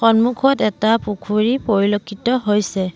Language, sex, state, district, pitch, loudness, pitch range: Assamese, female, Assam, Sonitpur, 215 Hz, -18 LUFS, 205-240 Hz